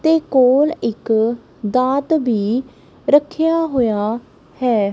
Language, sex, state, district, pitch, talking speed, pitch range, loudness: Punjabi, female, Punjab, Kapurthala, 255 Hz, 95 wpm, 225-295 Hz, -17 LUFS